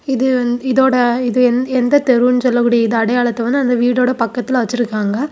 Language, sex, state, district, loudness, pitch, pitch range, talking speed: Tamil, female, Tamil Nadu, Kanyakumari, -15 LUFS, 245 Hz, 240-255 Hz, 135 wpm